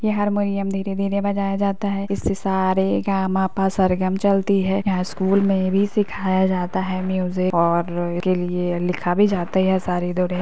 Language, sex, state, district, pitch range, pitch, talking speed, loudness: Hindi, female, Bihar, East Champaran, 185-195 Hz, 190 Hz, 185 wpm, -21 LUFS